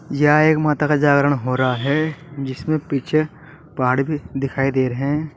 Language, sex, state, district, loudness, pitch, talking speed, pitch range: Hindi, male, Uttar Pradesh, Saharanpur, -19 LUFS, 145 Hz, 180 wpm, 135-155 Hz